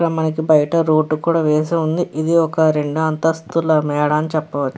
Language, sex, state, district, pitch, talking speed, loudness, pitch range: Telugu, female, Andhra Pradesh, Krishna, 155 Hz, 190 wpm, -17 LUFS, 150-160 Hz